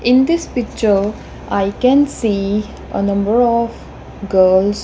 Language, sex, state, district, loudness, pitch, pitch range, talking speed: English, female, Punjab, Kapurthala, -16 LUFS, 215 Hz, 200-245 Hz, 125 wpm